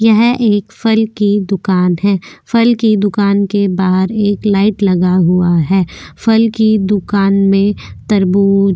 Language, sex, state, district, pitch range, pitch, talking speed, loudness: Hindi, female, Goa, North and South Goa, 195-215 Hz, 200 Hz, 150 wpm, -12 LUFS